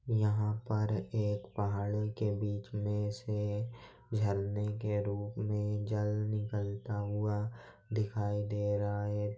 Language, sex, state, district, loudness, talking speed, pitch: Hindi, male, Bihar, Jahanabad, -35 LUFS, 120 wpm, 105 Hz